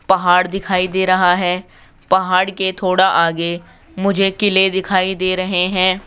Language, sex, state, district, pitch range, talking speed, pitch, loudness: Hindi, male, Rajasthan, Jaipur, 185-190 Hz, 150 wpm, 185 Hz, -16 LUFS